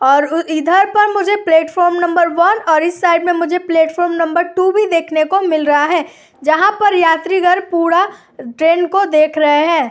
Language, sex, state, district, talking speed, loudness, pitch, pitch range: Hindi, female, Uttar Pradesh, Jyotiba Phule Nagar, 190 wpm, -13 LUFS, 340 Hz, 320-370 Hz